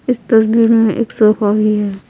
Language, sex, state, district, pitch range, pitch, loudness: Hindi, female, Bihar, Patna, 210-230 Hz, 220 Hz, -13 LUFS